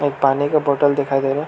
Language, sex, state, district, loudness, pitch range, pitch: Hindi, male, Arunachal Pradesh, Lower Dibang Valley, -18 LUFS, 135-145 Hz, 140 Hz